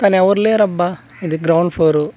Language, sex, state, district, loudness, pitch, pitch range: Telugu, male, Andhra Pradesh, Manyam, -15 LUFS, 175 Hz, 160-195 Hz